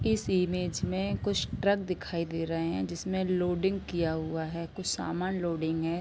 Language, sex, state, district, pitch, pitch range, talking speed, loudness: Hindi, female, Jharkhand, Sahebganj, 170 Hz, 160-180 Hz, 180 wpm, -31 LUFS